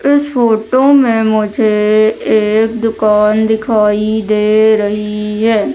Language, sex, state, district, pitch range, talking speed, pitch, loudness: Hindi, female, Madhya Pradesh, Umaria, 210-225 Hz, 105 wpm, 220 Hz, -12 LUFS